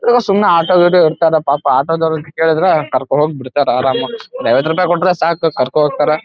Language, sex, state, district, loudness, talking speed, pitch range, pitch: Kannada, male, Karnataka, Dharwad, -13 LUFS, 200 wpm, 150-180 Hz, 165 Hz